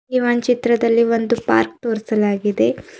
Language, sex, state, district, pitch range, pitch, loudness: Kannada, female, Karnataka, Bidar, 210-240 Hz, 230 Hz, -18 LUFS